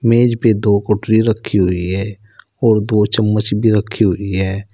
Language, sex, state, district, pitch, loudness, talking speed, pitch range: Hindi, male, Uttar Pradesh, Saharanpur, 105 Hz, -15 LUFS, 175 wpm, 100-110 Hz